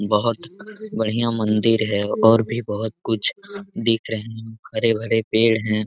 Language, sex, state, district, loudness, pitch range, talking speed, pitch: Hindi, male, Jharkhand, Jamtara, -21 LUFS, 110-115 Hz, 155 wpm, 115 Hz